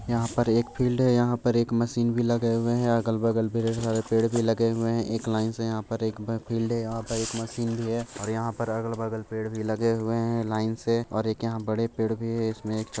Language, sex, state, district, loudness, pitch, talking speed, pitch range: Hindi, male, Bihar, Purnia, -27 LUFS, 115 Hz, 270 wpm, 110-115 Hz